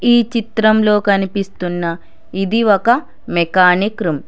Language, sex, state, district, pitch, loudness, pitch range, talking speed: Telugu, female, Telangana, Hyderabad, 200 Hz, -15 LUFS, 180-220 Hz, 110 wpm